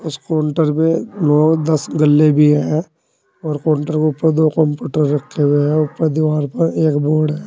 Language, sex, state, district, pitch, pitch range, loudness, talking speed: Hindi, male, Uttar Pradesh, Saharanpur, 155 Hz, 150-160 Hz, -16 LUFS, 185 wpm